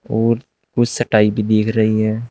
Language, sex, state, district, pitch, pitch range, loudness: Hindi, male, Uttar Pradesh, Shamli, 110 Hz, 110-115 Hz, -17 LUFS